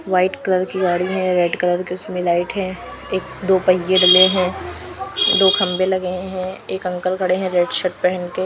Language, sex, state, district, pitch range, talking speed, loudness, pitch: Hindi, female, Maharashtra, Washim, 180-190 Hz, 200 wpm, -18 LUFS, 185 Hz